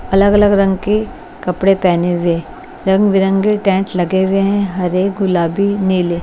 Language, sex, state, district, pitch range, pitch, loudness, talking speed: Hindi, female, Bihar, West Champaran, 180-200 Hz, 190 Hz, -14 LUFS, 155 wpm